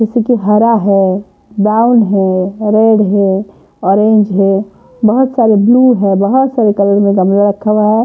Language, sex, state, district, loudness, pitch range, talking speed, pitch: Hindi, female, Punjab, Pathankot, -11 LUFS, 200-225 Hz, 165 wpm, 210 Hz